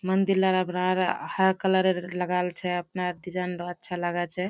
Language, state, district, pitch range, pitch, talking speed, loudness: Surjapuri, Bihar, Kishanganj, 180-185 Hz, 180 Hz, 145 wpm, -27 LUFS